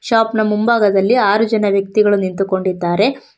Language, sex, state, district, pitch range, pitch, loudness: Kannada, female, Karnataka, Bangalore, 195-220 Hz, 205 Hz, -15 LUFS